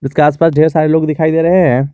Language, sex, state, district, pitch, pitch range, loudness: Hindi, male, Jharkhand, Garhwa, 155 Hz, 150-165 Hz, -11 LUFS